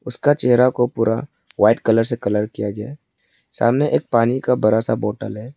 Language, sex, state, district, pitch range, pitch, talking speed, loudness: Hindi, male, Arunachal Pradesh, Lower Dibang Valley, 105-125 Hz, 115 Hz, 205 wpm, -18 LUFS